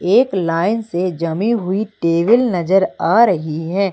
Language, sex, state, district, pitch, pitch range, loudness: Hindi, female, Madhya Pradesh, Umaria, 190 Hz, 170-215 Hz, -16 LUFS